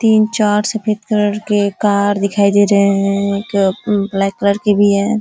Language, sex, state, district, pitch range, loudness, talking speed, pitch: Hindi, female, Uttar Pradesh, Ghazipur, 200-210 Hz, -14 LUFS, 195 wpm, 205 Hz